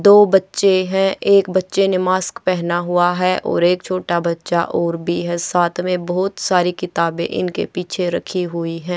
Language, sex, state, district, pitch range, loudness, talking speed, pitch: Hindi, female, Haryana, Charkhi Dadri, 175-185 Hz, -18 LUFS, 180 wpm, 180 Hz